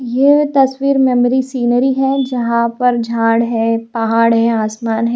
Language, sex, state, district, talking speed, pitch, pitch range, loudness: Hindi, female, Haryana, Jhajjar, 150 wpm, 240 Hz, 230-265 Hz, -14 LUFS